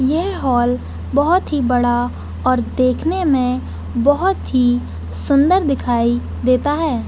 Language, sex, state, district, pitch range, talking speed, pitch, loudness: Hindi, female, Chhattisgarh, Bilaspur, 235-290 Hz, 120 wpm, 255 Hz, -17 LUFS